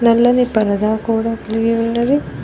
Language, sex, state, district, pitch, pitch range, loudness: Telugu, female, Telangana, Mahabubabad, 230 Hz, 220-235 Hz, -16 LUFS